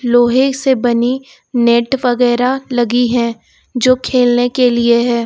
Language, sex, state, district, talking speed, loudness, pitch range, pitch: Hindi, female, Uttar Pradesh, Lucknow, 135 wpm, -13 LUFS, 240-255 Hz, 245 Hz